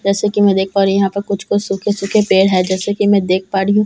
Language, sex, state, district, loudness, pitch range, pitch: Hindi, female, Bihar, Katihar, -15 LUFS, 195-205 Hz, 200 Hz